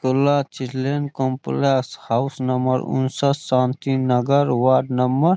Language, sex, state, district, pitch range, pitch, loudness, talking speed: Maithili, male, Bihar, Saharsa, 130-140 Hz, 130 Hz, -20 LUFS, 125 wpm